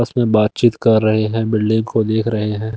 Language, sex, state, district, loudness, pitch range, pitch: Hindi, male, Delhi, New Delhi, -16 LUFS, 110-115 Hz, 110 Hz